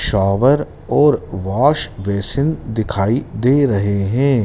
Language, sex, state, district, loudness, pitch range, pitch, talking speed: Hindi, male, Madhya Pradesh, Dhar, -17 LUFS, 100-140 Hz, 115 Hz, 110 wpm